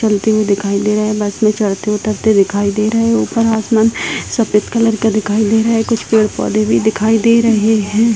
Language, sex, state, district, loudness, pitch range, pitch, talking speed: Hindi, female, Bihar, Madhepura, -14 LUFS, 210-225 Hz, 215 Hz, 220 wpm